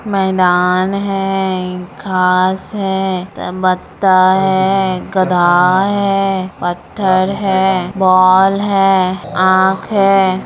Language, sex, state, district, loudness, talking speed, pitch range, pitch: Hindi, female, Bihar, Supaul, -13 LUFS, 85 wpm, 185-195 Hz, 190 Hz